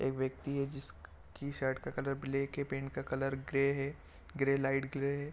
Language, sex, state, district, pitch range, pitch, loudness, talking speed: Hindi, male, Chhattisgarh, Raigarh, 135-140 Hz, 135 Hz, -36 LUFS, 200 wpm